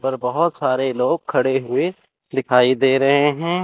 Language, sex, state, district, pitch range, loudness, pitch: Hindi, male, Chandigarh, Chandigarh, 130-165 Hz, -18 LUFS, 135 Hz